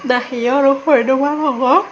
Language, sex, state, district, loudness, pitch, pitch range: Chakma, female, Tripura, Dhalai, -15 LUFS, 275 Hz, 255-290 Hz